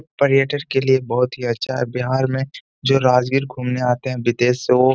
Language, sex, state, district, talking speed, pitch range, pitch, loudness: Hindi, male, Bihar, Gaya, 245 wpm, 125-135 Hz, 130 Hz, -19 LUFS